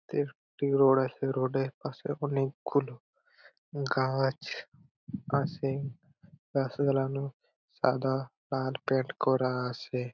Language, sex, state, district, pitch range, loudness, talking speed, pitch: Bengali, male, West Bengal, Purulia, 130-140 Hz, -31 LUFS, 120 wpm, 135 Hz